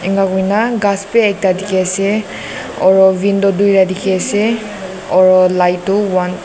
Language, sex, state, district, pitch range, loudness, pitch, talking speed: Nagamese, female, Nagaland, Dimapur, 185-200 Hz, -13 LUFS, 195 Hz, 150 wpm